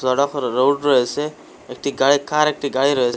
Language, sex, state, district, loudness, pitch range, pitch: Bengali, male, Assam, Hailakandi, -19 LUFS, 130-145 Hz, 140 Hz